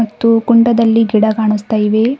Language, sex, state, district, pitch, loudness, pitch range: Kannada, female, Karnataka, Bidar, 225 Hz, -12 LUFS, 215-230 Hz